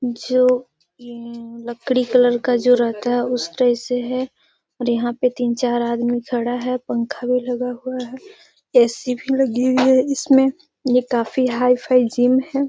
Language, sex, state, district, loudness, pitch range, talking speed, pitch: Hindi, female, Bihar, Gaya, -19 LUFS, 240-255 Hz, 165 wpm, 250 Hz